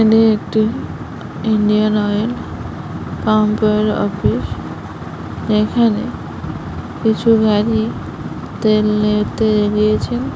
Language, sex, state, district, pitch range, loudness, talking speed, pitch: Bengali, female, West Bengal, Paschim Medinipur, 205-220 Hz, -17 LUFS, 85 wpm, 215 Hz